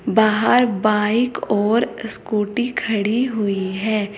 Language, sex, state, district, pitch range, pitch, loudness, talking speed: Hindi, female, Uttar Pradesh, Saharanpur, 210-230 Hz, 215 Hz, -19 LUFS, 100 wpm